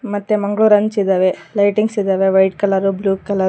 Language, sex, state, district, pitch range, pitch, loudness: Kannada, female, Karnataka, Koppal, 190-205 Hz, 200 Hz, -16 LUFS